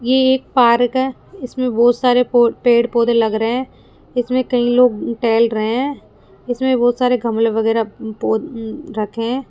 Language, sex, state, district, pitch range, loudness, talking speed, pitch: Hindi, female, Rajasthan, Jaipur, 230-255 Hz, -16 LUFS, 175 wpm, 240 Hz